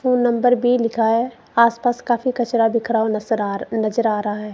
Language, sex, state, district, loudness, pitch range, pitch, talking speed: Hindi, female, Punjab, Kapurthala, -19 LUFS, 220-240 Hz, 235 Hz, 240 wpm